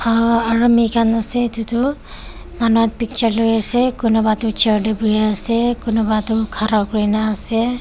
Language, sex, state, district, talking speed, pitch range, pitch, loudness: Nagamese, female, Nagaland, Kohima, 175 wpm, 220-235 Hz, 225 Hz, -16 LUFS